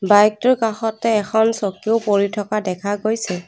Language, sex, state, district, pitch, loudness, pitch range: Assamese, female, Assam, Kamrup Metropolitan, 215 Hz, -19 LUFS, 200-225 Hz